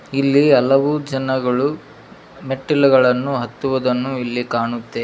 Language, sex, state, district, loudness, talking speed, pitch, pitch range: Kannada, male, Karnataka, Koppal, -17 LUFS, 85 wpm, 135 Hz, 125-140 Hz